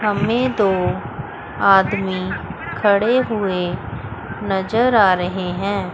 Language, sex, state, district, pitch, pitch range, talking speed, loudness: Hindi, female, Chandigarh, Chandigarh, 195 Hz, 180-210 Hz, 90 wpm, -18 LUFS